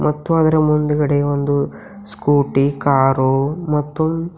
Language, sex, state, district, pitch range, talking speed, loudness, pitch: Kannada, female, Karnataka, Bidar, 140-160 Hz, 95 wpm, -17 LUFS, 150 Hz